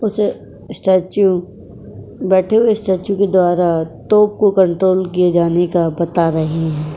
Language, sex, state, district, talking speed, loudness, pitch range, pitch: Hindi, female, Uttar Pradesh, Etah, 140 wpm, -15 LUFS, 165-195 Hz, 180 Hz